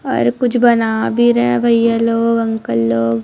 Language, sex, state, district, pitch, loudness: Hindi, female, Chhattisgarh, Raipur, 225 Hz, -14 LUFS